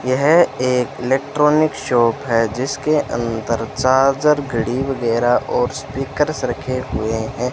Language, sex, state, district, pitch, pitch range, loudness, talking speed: Hindi, male, Rajasthan, Bikaner, 130 Hz, 120-135 Hz, -18 LUFS, 120 wpm